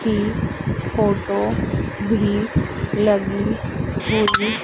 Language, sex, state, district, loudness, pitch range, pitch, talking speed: Hindi, female, Madhya Pradesh, Dhar, -20 LUFS, 205-215 Hz, 210 Hz, 65 wpm